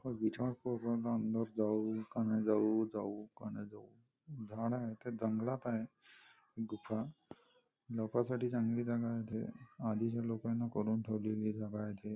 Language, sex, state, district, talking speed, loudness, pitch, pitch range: Marathi, male, Maharashtra, Nagpur, 120 wpm, -39 LUFS, 115 Hz, 110-120 Hz